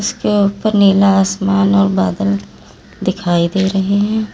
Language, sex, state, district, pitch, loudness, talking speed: Hindi, female, Uttar Pradesh, Lalitpur, 195 Hz, -14 LUFS, 140 wpm